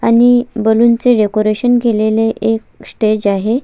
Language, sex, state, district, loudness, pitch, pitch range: Marathi, female, Maharashtra, Solapur, -13 LUFS, 225 Hz, 215-235 Hz